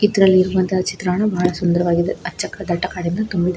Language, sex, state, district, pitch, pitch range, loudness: Kannada, female, Karnataka, Shimoga, 185 Hz, 175-190 Hz, -18 LUFS